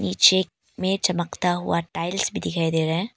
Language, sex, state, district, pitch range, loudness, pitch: Hindi, female, Arunachal Pradesh, Papum Pare, 165-185 Hz, -23 LUFS, 175 Hz